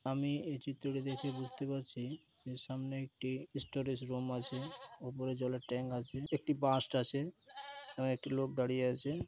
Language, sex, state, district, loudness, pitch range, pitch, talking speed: Bengali, male, West Bengal, Dakshin Dinajpur, -39 LUFS, 130-140 Hz, 135 Hz, 150 wpm